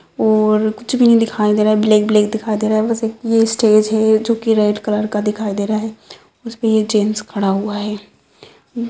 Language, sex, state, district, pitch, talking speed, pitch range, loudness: Hindi, female, Rajasthan, Nagaur, 215 Hz, 215 wpm, 210-225 Hz, -16 LUFS